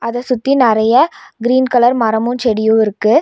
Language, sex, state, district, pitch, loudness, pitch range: Tamil, female, Tamil Nadu, Nilgiris, 240 Hz, -13 LUFS, 220-255 Hz